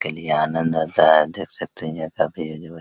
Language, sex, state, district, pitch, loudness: Hindi, male, Bihar, Araria, 80 Hz, -21 LUFS